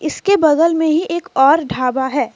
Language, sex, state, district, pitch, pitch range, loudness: Hindi, female, Jharkhand, Deoghar, 315 Hz, 270-335 Hz, -15 LUFS